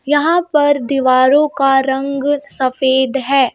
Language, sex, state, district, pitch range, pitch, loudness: Hindi, female, Madhya Pradesh, Bhopal, 265-290 Hz, 275 Hz, -14 LUFS